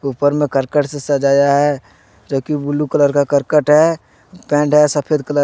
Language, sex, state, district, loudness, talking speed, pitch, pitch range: Hindi, male, Jharkhand, Deoghar, -15 LUFS, 200 wpm, 145 Hz, 140-150 Hz